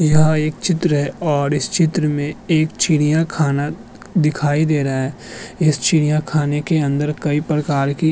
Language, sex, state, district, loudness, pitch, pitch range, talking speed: Hindi, male, Uttar Pradesh, Budaun, -18 LUFS, 150 Hz, 145-155 Hz, 160 wpm